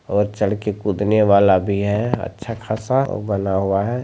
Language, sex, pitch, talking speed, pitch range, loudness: Maithili, male, 105 Hz, 165 wpm, 100-110 Hz, -19 LUFS